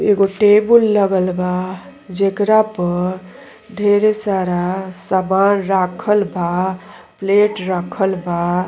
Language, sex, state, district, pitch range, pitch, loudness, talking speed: Bhojpuri, female, Uttar Pradesh, Gorakhpur, 180-205 Hz, 190 Hz, -16 LUFS, 105 wpm